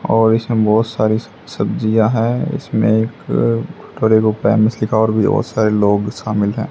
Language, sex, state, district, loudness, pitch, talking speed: Hindi, male, Haryana, Charkhi Dadri, -16 LUFS, 110 Hz, 135 wpm